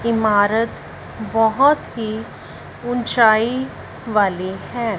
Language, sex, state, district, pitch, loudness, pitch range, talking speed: Hindi, female, Punjab, Fazilka, 225 Hz, -18 LUFS, 215-235 Hz, 70 wpm